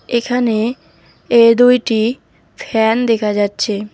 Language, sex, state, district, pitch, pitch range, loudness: Bengali, female, West Bengal, Alipurduar, 230 Hz, 215-240 Hz, -14 LUFS